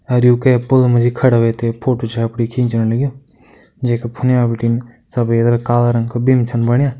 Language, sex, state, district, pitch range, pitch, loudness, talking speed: Kumaoni, male, Uttarakhand, Uttarkashi, 115-125 Hz, 120 Hz, -15 LUFS, 195 wpm